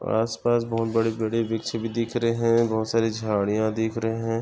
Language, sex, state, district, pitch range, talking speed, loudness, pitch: Hindi, male, Maharashtra, Nagpur, 110-115 Hz, 205 wpm, -24 LUFS, 115 Hz